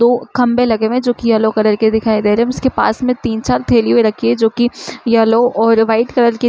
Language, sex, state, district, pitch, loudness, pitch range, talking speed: Hindi, female, Uttar Pradesh, Muzaffarnagar, 230 Hz, -14 LUFS, 220-245 Hz, 260 wpm